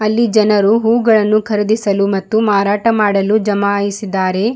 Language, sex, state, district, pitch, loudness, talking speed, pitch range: Kannada, female, Karnataka, Bidar, 210 Hz, -14 LUFS, 105 wpm, 200-220 Hz